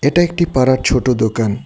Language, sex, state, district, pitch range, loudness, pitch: Bengali, male, Tripura, West Tripura, 115-145 Hz, -15 LUFS, 130 Hz